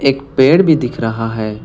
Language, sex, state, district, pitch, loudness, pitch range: Hindi, male, West Bengal, Darjeeling, 130 Hz, -14 LUFS, 115-140 Hz